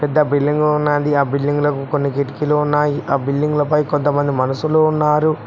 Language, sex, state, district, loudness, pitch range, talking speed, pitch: Telugu, male, Telangana, Mahabubabad, -17 LUFS, 140-150 Hz, 140 wpm, 145 Hz